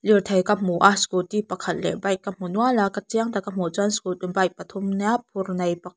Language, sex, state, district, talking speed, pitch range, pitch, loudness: Mizo, female, Mizoram, Aizawl, 260 wpm, 185-205 Hz, 195 Hz, -23 LUFS